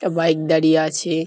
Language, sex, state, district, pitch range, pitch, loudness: Bengali, male, West Bengal, Kolkata, 160-165 Hz, 160 Hz, -18 LUFS